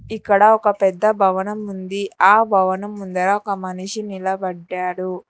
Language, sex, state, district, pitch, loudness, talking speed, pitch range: Telugu, female, Telangana, Hyderabad, 195 Hz, -18 LUFS, 125 wpm, 185-205 Hz